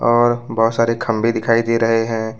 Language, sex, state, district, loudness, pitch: Hindi, male, Jharkhand, Ranchi, -17 LUFS, 115 Hz